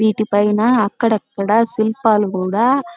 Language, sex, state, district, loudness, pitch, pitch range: Telugu, female, Andhra Pradesh, Chittoor, -16 LUFS, 220 Hz, 205-230 Hz